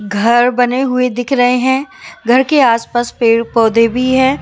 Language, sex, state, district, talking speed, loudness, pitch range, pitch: Hindi, female, Maharashtra, Mumbai Suburban, 190 wpm, -12 LUFS, 230-260 Hz, 245 Hz